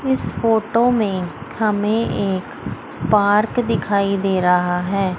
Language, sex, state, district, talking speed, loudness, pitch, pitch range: Hindi, female, Chandigarh, Chandigarh, 115 wpm, -19 LUFS, 200 Hz, 185-225 Hz